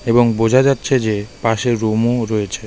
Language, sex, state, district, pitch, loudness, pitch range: Bengali, male, West Bengal, Darjeeling, 115 Hz, -16 LUFS, 110-120 Hz